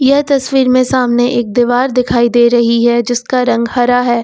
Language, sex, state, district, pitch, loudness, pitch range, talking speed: Hindi, female, Uttar Pradesh, Lucknow, 245 Hz, -12 LUFS, 240-255 Hz, 195 wpm